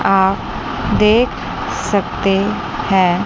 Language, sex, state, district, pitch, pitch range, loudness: Hindi, female, Chandigarh, Chandigarh, 195 Hz, 190-205 Hz, -16 LUFS